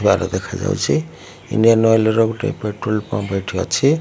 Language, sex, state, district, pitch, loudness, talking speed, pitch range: Odia, male, Odisha, Malkangiri, 105 Hz, -18 LUFS, 165 wpm, 95-115 Hz